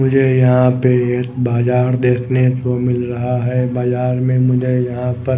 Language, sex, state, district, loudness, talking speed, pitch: Hindi, male, Odisha, Khordha, -15 LUFS, 165 wpm, 125 Hz